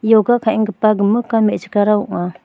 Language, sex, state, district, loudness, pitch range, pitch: Garo, female, Meghalaya, West Garo Hills, -15 LUFS, 205-220 Hz, 215 Hz